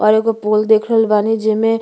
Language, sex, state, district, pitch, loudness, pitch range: Bhojpuri, female, Uttar Pradesh, Gorakhpur, 220 Hz, -14 LUFS, 215-225 Hz